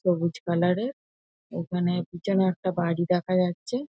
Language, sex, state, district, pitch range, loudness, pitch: Bengali, female, West Bengal, North 24 Parganas, 175-185 Hz, -26 LUFS, 180 Hz